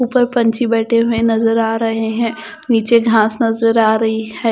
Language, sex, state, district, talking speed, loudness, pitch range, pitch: Hindi, female, Chandigarh, Chandigarh, 185 wpm, -15 LUFS, 225-235 Hz, 230 Hz